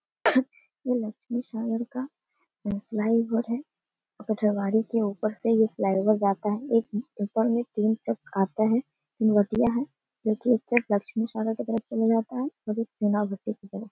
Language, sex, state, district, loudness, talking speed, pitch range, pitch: Hindi, female, Bihar, Darbhanga, -27 LUFS, 75 wpm, 210-235 Hz, 225 Hz